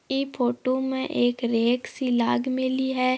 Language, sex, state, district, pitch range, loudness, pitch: Marwari, female, Rajasthan, Nagaur, 245-265 Hz, -25 LUFS, 255 Hz